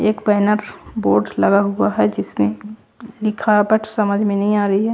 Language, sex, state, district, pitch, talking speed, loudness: Hindi, female, Chandigarh, Chandigarh, 205 Hz, 170 wpm, -17 LUFS